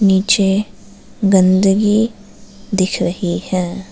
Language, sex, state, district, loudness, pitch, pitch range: Hindi, female, Arunachal Pradesh, Lower Dibang Valley, -15 LUFS, 195 Hz, 185-205 Hz